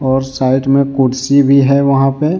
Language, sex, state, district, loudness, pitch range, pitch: Hindi, male, Jharkhand, Deoghar, -12 LUFS, 135-140 Hz, 135 Hz